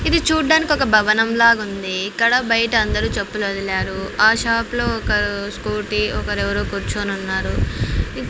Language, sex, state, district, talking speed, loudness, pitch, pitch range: Telugu, female, Andhra Pradesh, Sri Satya Sai, 115 wpm, -18 LUFS, 210 Hz, 195-230 Hz